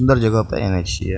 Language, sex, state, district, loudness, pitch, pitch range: Maithili, male, Bihar, Purnia, -19 LUFS, 95 Hz, 95-110 Hz